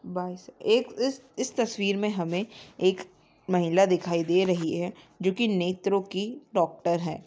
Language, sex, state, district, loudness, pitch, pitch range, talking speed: Hindi, male, Bihar, Samastipur, -27 LUFS, 185 Hz, 175-215 Hz, 150 wpm